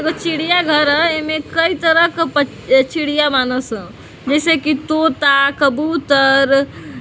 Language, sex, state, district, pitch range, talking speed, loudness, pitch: Bhojpuri, female, Uttar Pradesh, Deoria, 275-325 Hz, 145 wpm, -15 LUFS, 300 Hz